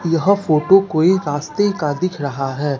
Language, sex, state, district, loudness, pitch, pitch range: Hindi, male, Bihar, Katihar, -17 LUFS, 160 Hz, 145-190 Hz